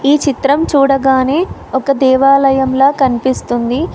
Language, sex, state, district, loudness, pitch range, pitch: Telugu, female, Telangana, Hyderabad, -12 LUFS, 265-280 Hz, 270 Hz